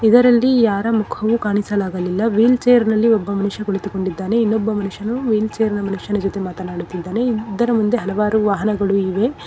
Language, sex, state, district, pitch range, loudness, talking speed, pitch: Kannada, female, Karnataka, Bangalore, 200-225 Hz, -18 LUFS, 140 wpm, 210 Hz